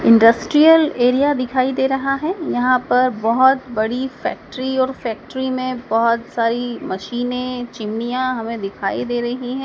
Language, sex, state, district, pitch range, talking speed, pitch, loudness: Hindi, female, Madhya Pradesh, Dhar, 230-260 Hz, 145 wpm, 250 Hz, -18 LUFS